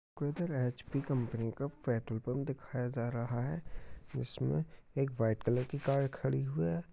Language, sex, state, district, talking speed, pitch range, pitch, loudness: Hindi, male, Bihar, Jahanabad, 175 wpm, 110-140 Hz, 125 Hz, -36 LUFS